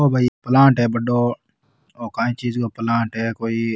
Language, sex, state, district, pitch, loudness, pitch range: Rajasthani, male, Rajasthan, Nagaur, 120 Hz, -19 LUFS, 115-125 Hz